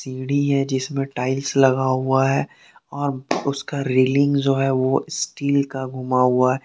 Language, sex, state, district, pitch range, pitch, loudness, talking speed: Hindi, male, Jharkhand, Deoghar, 130-140 Hz, 135 Hz, -20 LUFS, 135 wpm